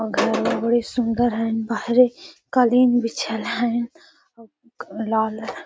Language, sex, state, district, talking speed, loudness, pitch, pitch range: Magahi, female, Bihar, Gaya, 125 wpm, -21 LUFS, 235 Hz, 225-245 Hz